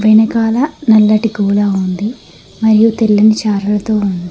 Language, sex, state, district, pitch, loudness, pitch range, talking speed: Telugu, female, Telangana, Mahabubabad, 215 Hz, -12 LUFS, 205-225 Hz, 110 wpm